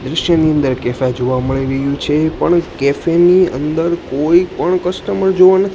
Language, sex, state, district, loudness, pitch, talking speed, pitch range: Gujarati, male, Gujarat, Gandhinagar, -14 LUFS, 160 Hz, 165 wpm, 135-180 Hz